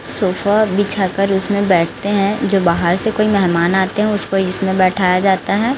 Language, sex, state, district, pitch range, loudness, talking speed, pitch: Hindi, female, Chhattisgarh, Raipur, 185-205 Hz, -15 LUFS, 175 wpm, 195 Hz